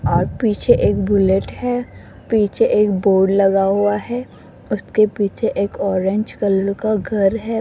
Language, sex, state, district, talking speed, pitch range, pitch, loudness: Hindi, female, Rajasthan, Jaipur, 150 wpm, 195-215 Hz, 205 Hz, -17 LUFS